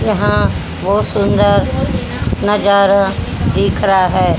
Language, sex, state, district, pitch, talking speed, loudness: Hindi, female, Haryana, Jhajjar, 180 Hz, 95 wpm, -14 LUFS